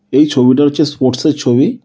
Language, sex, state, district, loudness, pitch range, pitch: Bengali, female, West Bengal, Kolkata, -12 LUFS, 125-155 Hz, 145 Hz